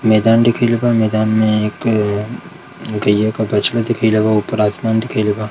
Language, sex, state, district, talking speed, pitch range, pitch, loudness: Hindi, male, Bihar, Darbhanga, 140 wpm, 105-115 Hz, 110 Hz, -15 LUFS